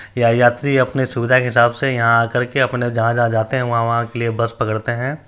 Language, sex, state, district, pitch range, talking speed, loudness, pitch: Hindi, male, Bihar, Supaul, 115-130 Hz, 240 wpm, -17 LUFS, 120 Hz